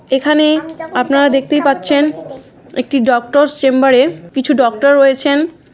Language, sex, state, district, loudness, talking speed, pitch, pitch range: Bengali, female, West Bengal, Jhargram, -12 LUFS, 105 wpm, 280 Hz, 265-300 Hz